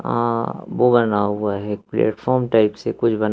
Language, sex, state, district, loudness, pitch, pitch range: Hindi, male, Madhya Pradesh, Katni, -20 LUFS, 115 Hz, 105-120 Hz